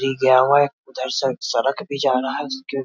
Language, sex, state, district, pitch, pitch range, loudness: Hindi, male, Bihar, Muzaffarpur, 135 Hz, 130-140 Hz, -20 LUFS